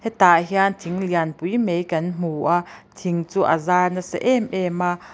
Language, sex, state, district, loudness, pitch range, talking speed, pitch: Mizo, female, Mizoram, Aizawl, -21 LUFS, 175-190 Hz, 200 wpm, 180 Hz